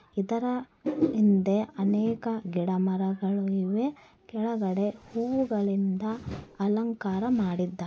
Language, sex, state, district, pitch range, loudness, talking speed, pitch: Kannada, female, Karnataka, Bellary, 195-230 Hz, -28 LUFS, 70 wpm, 205 Hz